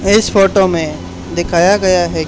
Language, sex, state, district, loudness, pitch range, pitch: Hindi, male, Haryana, Charkhi Dadri, -13 LUFS, 170-195 Hz, 185 Hz